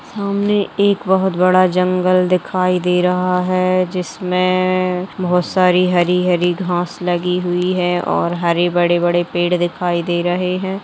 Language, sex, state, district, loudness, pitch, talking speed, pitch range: Hindi, female, Uttar Pradesh, Jalaun, -16 LUFS, 180 Hz, 140 wpm, 175-185 Hz